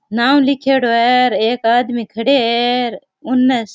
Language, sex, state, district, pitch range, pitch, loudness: Rajasthani, female, Rajasthan, Churu, 235-260 Hz, 245 Hz, -14 LUFS